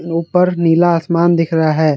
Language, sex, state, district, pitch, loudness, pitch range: Hindi, male, Jharkhand, Garhwa, 170 Hz, -14 LUFS, 165-175 Hz